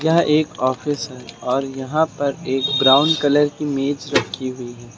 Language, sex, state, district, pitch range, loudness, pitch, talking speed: Hindi, male, Uttar Pradesh, Lucknow, 130-145 Hz, -19 LUFS, 135 Hz, 180 wpm